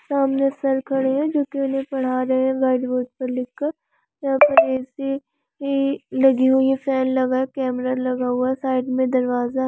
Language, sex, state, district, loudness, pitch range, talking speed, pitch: Hindi, female, West Bengal, Kolkata, -21 LUFS, 255-275 Hz, 180 wpm, 265 Hz